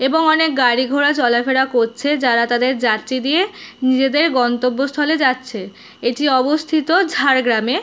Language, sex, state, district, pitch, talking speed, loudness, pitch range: Bengali, female, West Bengal, Jhargram, 265 Hz, 140 wpm, -16 LUFS, 245-295 Hz